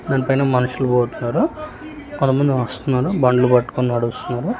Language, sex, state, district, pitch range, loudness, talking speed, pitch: Telugu, male, Telangana, Hyderabad, 125-140 Hz, -18 LUFS, 115 wpm, 130 Hz